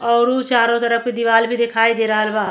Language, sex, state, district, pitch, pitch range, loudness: Bhojpuri, female, Uttar Pradesh, Deoria, 235 Hz, 225-235 Hz, -16 LUFS